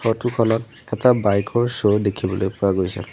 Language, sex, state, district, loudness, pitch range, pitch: Assamese, male, Assam, Sonitpur, -20 LUFS, 100-115 Hz, 105 Hz